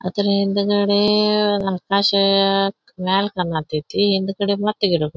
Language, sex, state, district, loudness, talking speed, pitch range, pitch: Kannada, female, Karnataka, Belgaum, -18 LUFS, 80 wpm, 190-205 Hz, 200 Hz